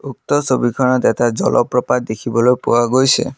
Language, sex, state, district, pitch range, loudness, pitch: Assamese, male, Assam, Kamrup Metropolitan, 120-135 Hz, -15 LUFS, 125 Hz